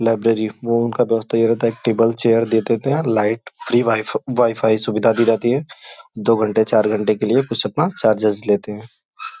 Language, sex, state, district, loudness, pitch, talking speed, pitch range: Hindi, male, Uttar Pradesh, Gorakhpur, -18 LUFS, 115 Hz, 190 wpm, 110-120 Hz